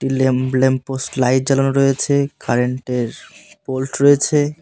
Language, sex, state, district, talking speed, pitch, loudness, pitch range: Bengali, male, West Bengal, Cooch Behar, 115 wpm, 130 Hz, -17 LUFS, 130-140 Hz